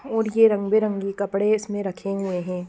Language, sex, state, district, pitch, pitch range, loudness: Hindi, female, Chhattisgarh, Raigarh, 200 Hz, 195-215 Hz, -22 LUFS